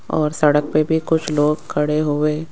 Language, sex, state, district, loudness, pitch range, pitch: Hindi, female, Rajasthan, Jaipur, -18 LUFS, 150-155 Hz, 150 Hz